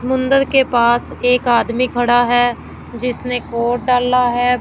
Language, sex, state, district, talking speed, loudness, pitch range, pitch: Hindi, female, Punjab, Fazilka, 145 wpm, -15 LUFS, 240-250 Hz, 245 Hz